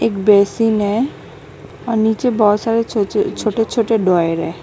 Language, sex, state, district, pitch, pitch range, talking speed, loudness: Hindi, female, West Bengal, Alipurduar, 220 Hz, 205-225 Hz, 155 wpm, -16 LUFS